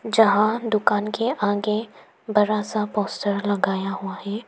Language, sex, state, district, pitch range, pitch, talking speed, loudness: Hindi, female, Arunachal Pradesh, Papum Pare, 205-215 Hz, 210 Hz, 135 wpm, -22 LUFS